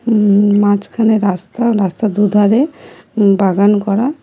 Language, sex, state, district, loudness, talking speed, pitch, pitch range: Bengali, female, West Bengal, Cooch Behar, -13 LUFS, 130 wpm, 205 Hz, 200-225 Hz